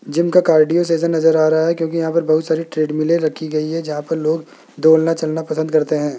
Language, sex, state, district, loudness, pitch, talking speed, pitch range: Hindi, male, Rajasthan, Jaipur, -17 LUFS, 160 Hz, 240 wpm, 155-165 Hz